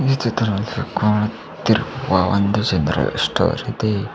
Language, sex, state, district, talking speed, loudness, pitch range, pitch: Kannada, male, Karnataka, Bidar, 115 wpm, -19 LUFS, 100-115 Hz, 105 Hz